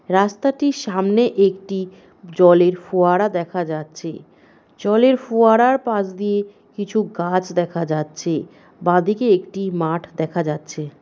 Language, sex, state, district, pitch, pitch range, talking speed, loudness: Bengali, female, West Bengal, North 24 Parganas, 185 Hz, 170-210 Hz, 115 wpm, -19 LUFS